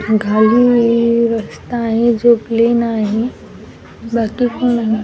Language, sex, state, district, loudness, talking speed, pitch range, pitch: Marathi, female, Maharashtra, Washim, -14 LUFS, 105 wpm, 225-235 Hz, 230 Hz